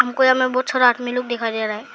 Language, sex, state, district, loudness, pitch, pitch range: Hindi, male, Arunachal Pradesh, Lower Dibang Valley, -19 LUFS, 245 Hz, 230-255 Hz